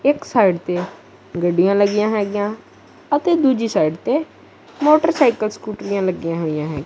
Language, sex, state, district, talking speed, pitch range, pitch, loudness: Punjabi, female, Punjab, Kapurthala, 130 wpm, 175-275 Hz, 205 Hz, -18 LUFS